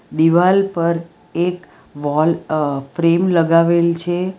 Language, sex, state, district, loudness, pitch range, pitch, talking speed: Gujarati, female, Gujarat, Valsad, -17 LUFS, 165-175 Hz, 170 Hz, 110 wpm